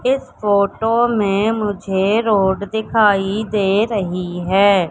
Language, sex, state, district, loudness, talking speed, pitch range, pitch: Hindi, female, Madhya Pradesh, Katni, -17 LUFS, 110 wpm, 195-220 Hz, 205 Hz